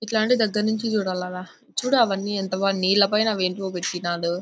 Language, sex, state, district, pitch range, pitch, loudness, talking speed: Telugu, female, Andhra Pradesh, Anantapur, 185-220 Hz, 195 Hz, -23 LUFS, 120 wpm